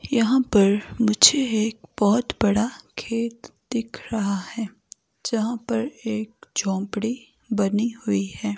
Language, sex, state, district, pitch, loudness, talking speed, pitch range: Hindi, female, Himachal Pradesh, Shimla, 220 Hz, -23 LUFS, 120 wpm, 205-235 Hz